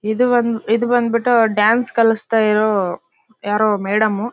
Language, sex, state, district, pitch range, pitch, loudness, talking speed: Kannada, female, Karnataka, Bellary, 210-230 Hz, 220 Hz, -16 LUFS, 140 wpm